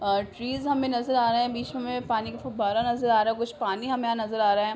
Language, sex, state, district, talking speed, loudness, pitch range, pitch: Hindi, female, Uttar Pradesh, Hamirpur, 305 wpm, -26 LUFS, 220-250 Hz, 235 Hz